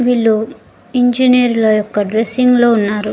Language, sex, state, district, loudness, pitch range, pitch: Telugu, female, Andhra Pradesh, Guntur, -13 LUFS, 215-245 Hz, 230 Hz